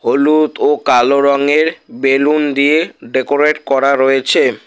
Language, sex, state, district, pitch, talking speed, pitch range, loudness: Bengali, male, West Bengal, Alipurduar, 145 Hz, 115 wpm, 135-155 Hz, -13 LUFS